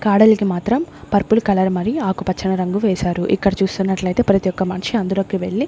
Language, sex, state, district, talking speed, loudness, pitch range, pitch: Telugu, female, Andhra Pradesh, Sri Satya Sai, 180 wpm, -18 LUFS, 185-205 Hz, 195 Hz